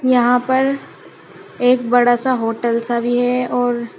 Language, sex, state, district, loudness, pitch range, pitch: Hindi, female, Uttar Pradesh, Shamli, -17 LUFS, 240-250 Hz, 245 Hz